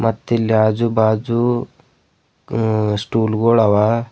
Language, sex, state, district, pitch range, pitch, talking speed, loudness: Kannada, male, Karnataka, Bidar, 110-115 Hz, 110 Hz, 85 wpm, -17 LUFS